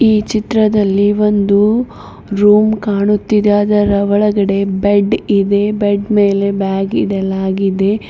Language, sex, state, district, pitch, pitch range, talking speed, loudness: Kannada, female, Karnataka, Bidar, 205 Hz, 200-210 Hz, 95 wpm, -13 LUFS